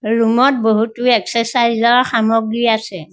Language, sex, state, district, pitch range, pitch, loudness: Assamese, female, Assam, Sonitpur, 220-240 Hz, 230 Hz, -14 LUFS